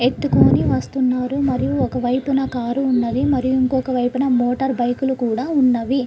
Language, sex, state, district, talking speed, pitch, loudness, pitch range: Telugu, female, Andhra Pradesh, Krishna, 130 wpm, 255 Hz, -19 LUFS, 245-265 Hz